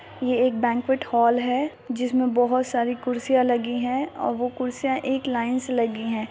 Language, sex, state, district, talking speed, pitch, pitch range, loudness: Hindi, female, Bihar, Muzaffarpur, 170 wpm, 250 Hz, 240-260 Hz, -24 LUFS